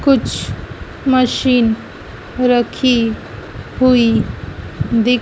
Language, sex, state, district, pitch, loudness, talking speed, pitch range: Hindi, female, Madhya Pradesh, Dhar, 245 Hz, -15 LUFS, 55 wpm, 235-255 Hz